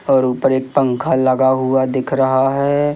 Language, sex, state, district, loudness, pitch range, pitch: Hindi, male, Madhya Pradesh, Katni, -16 LUFS, 130-135 Hz, 130 Hz